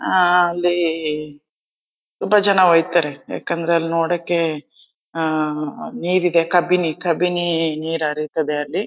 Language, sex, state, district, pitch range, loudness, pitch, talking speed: Kannada, female, Karnataka, Chamarajanagar, 155-175 Hz, -19 LUFS, 165 Hz, 95 wpm